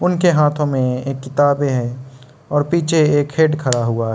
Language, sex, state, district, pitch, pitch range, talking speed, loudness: Hindi, male, Arunachal Pradesh, Lower Dibang Valley, 145 Hz, 130-150 Hz, 190 wpm, -17 LUFS